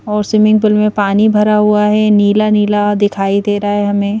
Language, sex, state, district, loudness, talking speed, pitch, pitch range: Hindi, female, Madhya Pradesh, Bhopal, -12 LUFS, 215 wpm, 210 Hz, 205-215 Hz